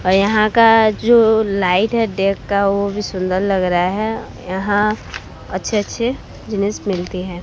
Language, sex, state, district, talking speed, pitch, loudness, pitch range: Hindi, female, Odisha, Sambalpur, 160 wpm, 200 Hz, -17 LUFS, 190-220 Hz